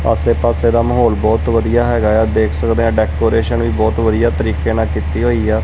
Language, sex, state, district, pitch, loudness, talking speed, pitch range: Punjabi, male, Punjab, Kapurthala, 110 Hz, -14 LUFS, 190 wpm, 80-115 Hz